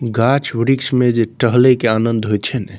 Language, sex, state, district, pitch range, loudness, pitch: Maithili, male, Bihar, Saharsa, 115-130 Hz, -15 LUFS, 120 Hz